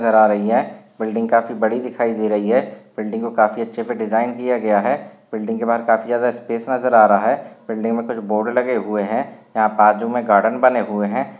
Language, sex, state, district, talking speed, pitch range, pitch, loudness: Hindi, male, Maharashtra, Solapur, 225 wpm, 110-120 Hz, 115 Hz, -18 LUFS